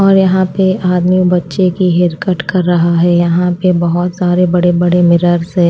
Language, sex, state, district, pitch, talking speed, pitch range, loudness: Hindi, female, Odisha, Malkangiri, 180 Hz, 200 wpm, 175-185 Hz, -12 LUFS